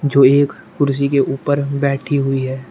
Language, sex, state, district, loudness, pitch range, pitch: Hindi, male, Uttar Pradesh, Shamli, -16 LUFS, 135-140 Hz, 140 Hz